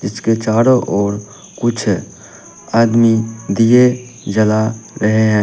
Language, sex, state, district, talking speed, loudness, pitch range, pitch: Hindi, male, Uttar Pradesh, Lalitpur, 100 wpm, -15 LUFS, 105-120 Hz, 110 Hz